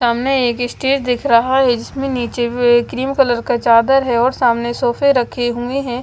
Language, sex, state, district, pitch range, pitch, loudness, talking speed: Hindi, female, Maharashtra, Mumbai Suburban, 240-265 Hz, 245 Hz, -15 LUFS, 190 wpm